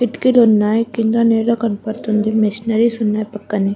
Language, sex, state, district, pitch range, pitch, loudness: Telugu, female, Andhra Pradesh, Guntur, 215-230 Hz, 220 Hz, -16 LUFS